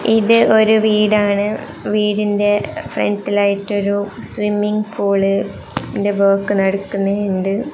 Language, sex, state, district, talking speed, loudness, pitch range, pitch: Malayalam, female, Kerala, Kasaragod, 70 wpm, -16 LUFS, 200-210 Hz, 205 Hz